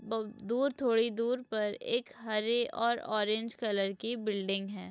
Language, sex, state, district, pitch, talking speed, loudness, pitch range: Hindi, female, Uttar Pradesh, Hamirpur, 225 Hz, 160 wpm, -32 LUFS, 210-235 Hz